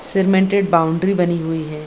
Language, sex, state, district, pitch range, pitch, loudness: Hindi, female, Bihar, Gaya, 160-195 Hz, 175 Hz, -17 LUFS